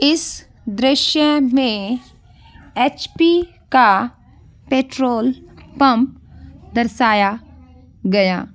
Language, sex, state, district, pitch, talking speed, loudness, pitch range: Hindi, female, Rajasthan, Nagaur, 255 Hz, 75 wpm, -17 LUFS, 215-275 Hz